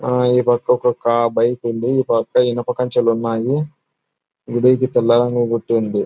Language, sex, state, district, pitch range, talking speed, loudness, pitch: Telugu, male, Andhra Pradesh, Anantapur, 115-125 Hz, 130 wpm, -17 LUFS, 120 Hz